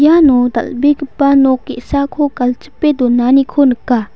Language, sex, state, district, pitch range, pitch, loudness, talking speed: Garo, female, Meghalaya, West Garo Hills, 250-290 Hz, 270 Hz, -12 LUFS, 100 wpm